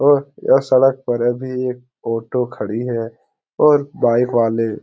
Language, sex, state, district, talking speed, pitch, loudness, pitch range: Hindi, male, Bihar, Jahanabad, 160 wpm, 125 Hz, -18 LUFS, 115-130 Hz